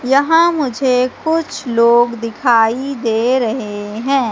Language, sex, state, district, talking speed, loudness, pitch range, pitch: Hindi, female, Madhya Pradesh, Katni, 110 wpm, -15 LUFS, 230-275 Hz, 250 Hz